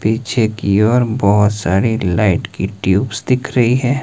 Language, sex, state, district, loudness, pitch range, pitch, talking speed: Hindi, male, Himachal Pradesh, Shimla, -15 LUFS, 100-120 Hz, 110 Hz, 165 wpm